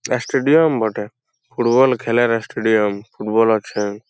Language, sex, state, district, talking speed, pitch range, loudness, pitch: Bengali, male, West Bengal, Purulia, 105 wpm, 105-120 Hz, -17 LUFS, 110 Hz